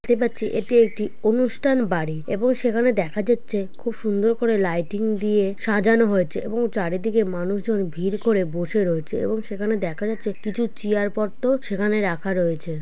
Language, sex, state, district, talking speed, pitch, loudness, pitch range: Bengali, male, West Bengal, Purulia, 135 wpm, 210 Hz, -22 LUFS, 195-230 Hz